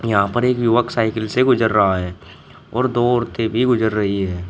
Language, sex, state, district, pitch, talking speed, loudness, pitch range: Hindi, male, Uttar Pradesh, Shamli, 115 Hz, 215 wpm, -18 LUFS, 100-120 Hz